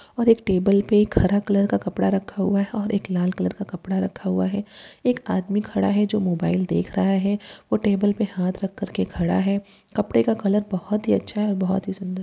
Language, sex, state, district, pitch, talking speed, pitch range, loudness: Hindi, female, Bihar, Jahanabad, 200 Hz, 230 wpm, 185-210 Hz, -23 LUFS